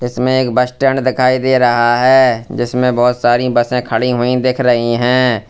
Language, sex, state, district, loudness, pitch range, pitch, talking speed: Hindi, male, Uttar Pradesh, Lalitpur, -13 LUFS, 120-130 Hz, 125 Hz, 185 wpm